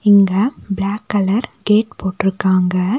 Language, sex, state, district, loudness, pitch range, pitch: Tamil, female, Tamil Nadu, Nilgiris, -17 LUFS, 190-210 Hz, 200 Hz